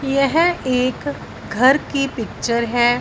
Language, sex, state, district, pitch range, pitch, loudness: Hindi, female, Punjab, Fazilka, 240-280 Hz, 260 Hz, -18 LUFS